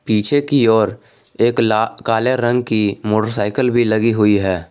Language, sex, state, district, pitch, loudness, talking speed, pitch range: Hindi, male, Jharkhand, Garhwa, 110 Hz, -16 LUFS, 165 wpm, 105-120 Hz